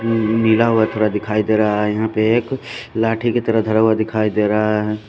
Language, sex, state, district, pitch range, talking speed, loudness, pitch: Hindi, male, Punjab, Fazilka, 105-115 Hz, 225 wpm, -17 LUFS, 110 Hz